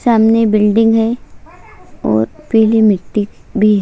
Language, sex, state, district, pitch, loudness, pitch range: Hindi, female, Chhattisgarh, Sukma, 220 Hz, -13 LUFS, 210-225 Hz